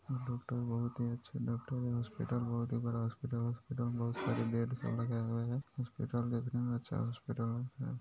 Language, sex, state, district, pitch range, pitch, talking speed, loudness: Hindi, male, Bihar, Purnia, 115-125 Hz, 120 Hz, 200 wpm, -38 LUFS